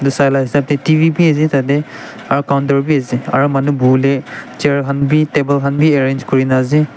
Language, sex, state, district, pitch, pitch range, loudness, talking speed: Nagamese, male, Nagaland, Dimapur, 140 Hz, 135-145 Hz, -14 LUFS, 215 wpm